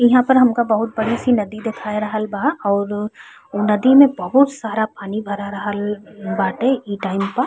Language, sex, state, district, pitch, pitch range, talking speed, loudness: Bhojpuri, female, Uttar Pradesh, Ghazipur, 215 Hz, 205-245 Hz, 185 wpm, -18 LUFS